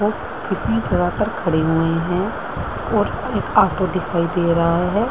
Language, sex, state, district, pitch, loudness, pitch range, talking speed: Hindi, female, Uttarakhand, Uttarkashi, 175 Hz, -20 LUFS, 170-185 Hz, 175 wpm